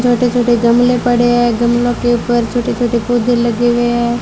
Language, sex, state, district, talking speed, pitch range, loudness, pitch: Hindi, female, Rajasthan, Bikaner, 200 wpm, 235-245 Hz, -13 LUFS, 240 Hz